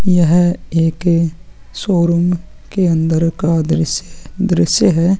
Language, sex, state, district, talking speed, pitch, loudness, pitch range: Hindi, male, Chhattisgarh, Sukma, 115 wpm, 170 Hz, -15 LUFS, 165-180 Hz